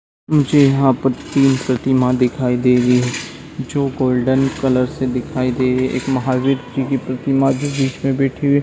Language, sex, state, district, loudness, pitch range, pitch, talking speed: Hindi, male, Chhattisgarh, Raigarh, -17 LUFS, 125-135 Hz, 130 Hz, 195 wpm